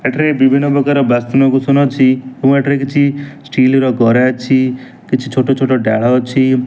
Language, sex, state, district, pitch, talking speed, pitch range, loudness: Odia, male, Odisha, Nuapada, 130 Hz, 155 wpm, 130-140 Hz, -13 LUFS